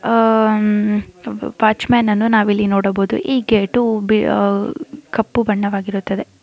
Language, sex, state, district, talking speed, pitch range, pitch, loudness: Kannada, female, Karnataka, Chamarajanagar, 120 wpm, 200-225 Hz, 215 Hz, -16 LUFS